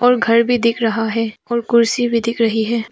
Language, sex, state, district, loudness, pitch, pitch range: Hindi, female, Arunachal Pradesh, Papum Pare, -16 LUFS, 230 Hz, 225-235 Hz